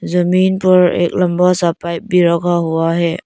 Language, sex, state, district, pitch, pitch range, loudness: Hindi, female, Arunachal Pradesh, Lower Dibang Valley, 175 Hz, 170-180 Hz, -14 LUFS